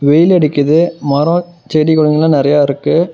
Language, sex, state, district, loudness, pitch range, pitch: Tamil, male, Tamil Nadu, Namakkal, -12 LUFS, 145-165 Hz, 155 Hz